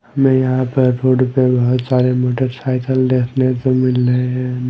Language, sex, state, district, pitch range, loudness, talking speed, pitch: Hindi, male, Odisha, Malkangiri, 125-130 Hz, -15 LUFS, 165 wpm, 130 Hz